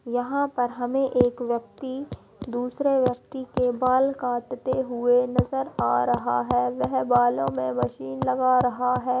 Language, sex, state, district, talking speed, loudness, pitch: Hindi, female, Bihar, Bhagalpur, 145 wpm, -24 LUFS, 245 Hz